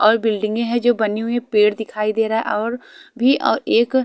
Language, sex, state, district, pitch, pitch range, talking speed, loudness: Hindi, female, Haryana, Charkhi Dadri, 225 Hz, 215-240 Hz, 250 wpm, -19 LUFS